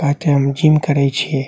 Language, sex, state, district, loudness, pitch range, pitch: Maithili, male, Bihar, Saharsa, -15 LUFS, 140-150 Hz, 145 Hz